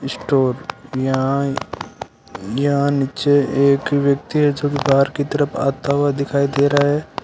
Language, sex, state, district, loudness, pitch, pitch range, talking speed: Hindi, male, Rajasthan, Bikaner, -18 LUFS, 140 Hz, 135-145 Hz, 115 wpm